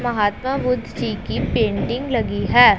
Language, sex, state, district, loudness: Hindi, female, Punjab, Pathankot, -20 LUFS